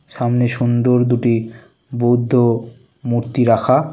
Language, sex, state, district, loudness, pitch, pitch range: Bengali, male, West Bengal, Kolkata, -16 LUFS, 120 Hz, 120-125 Hz